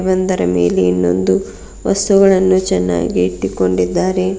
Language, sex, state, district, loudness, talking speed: Kannada, female, Karnataka, Bidar, -14 LUFS, 80 wpm